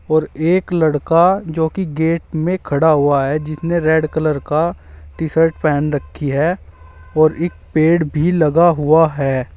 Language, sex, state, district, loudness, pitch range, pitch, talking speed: Hindi, male, Uttar Pradesh, Saharanpur, -16 LUFS, 145-165 Hz, 155 Hz, 165 wpm